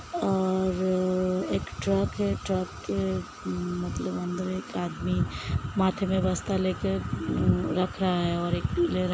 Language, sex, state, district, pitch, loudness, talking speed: Hindi, female, Uttar Pradesh, Hamirpur, 175 Hz, -28 LUFS, 140 wpm